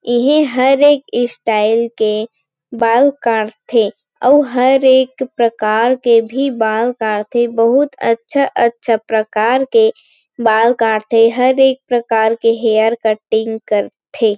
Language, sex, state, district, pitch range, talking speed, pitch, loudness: Chhattisgarhi, female, Chhattisgarh, Rajnandgaon, 220-260 Hz, 140 wpm, 235 Hz, -14 LUFS